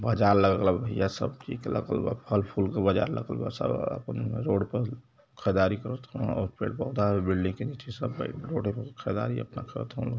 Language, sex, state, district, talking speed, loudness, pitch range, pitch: Hindi, male, Uttar Pradesh, Varanasi, 210 wpm, -29 LUFS, 100-125 Hz, 115 Hz